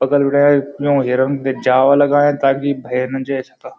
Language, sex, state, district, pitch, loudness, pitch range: Garhwali, male, Uttarakhand, Uttarkashi, 140 Hz, -15 LUFS, 130-145 Hz